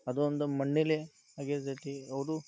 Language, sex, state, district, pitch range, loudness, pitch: Kannada, male, Karnataka, Dharwad, 140-155 Hz, -34 LUFS, 145 Hz